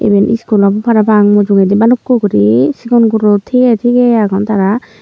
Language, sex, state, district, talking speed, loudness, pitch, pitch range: Chakma, female, Tripura, Unakoti, 165 wpm, -10 LUFS, 215 Hz, 200-235 Hz